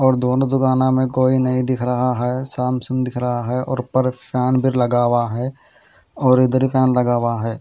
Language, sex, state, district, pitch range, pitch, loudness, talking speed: Hindi, male, Haryana, Charkhi Dadri, 125-130 Hz, 130 Hz, -18 LUFS, 205 wpm